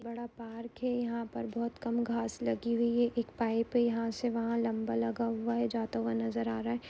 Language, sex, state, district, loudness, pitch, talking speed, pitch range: Hindi, female, Uttar Pradesh, Ghazipur, -33 LUFS, 230 Hz, 245 wpm, 225-235 Hz